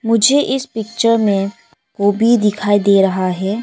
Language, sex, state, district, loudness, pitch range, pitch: Hindi, female, Arunachal Pradesh, Longding, -15 LUFS, 200-230 Hz, 210 Hz